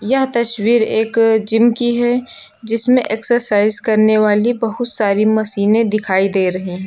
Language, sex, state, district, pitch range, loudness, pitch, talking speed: Hindi, female, Uttar Pradesh, Lucknow, 210-240 Hz, -13 LUFS, 220 Hz, 150 wpm